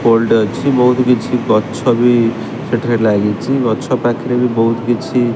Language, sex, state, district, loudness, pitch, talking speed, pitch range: Odia, male, Odisha, Khordha, -14 LUFS, 120 Hz, 155 wpm, 115-125 Hz